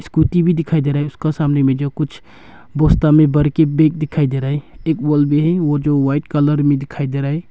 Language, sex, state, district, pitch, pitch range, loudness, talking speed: Hindi, male, Arunachal Pradesh, Longding, 150 Hz, 145-155 Hz, -16 LUFS, 265 wpm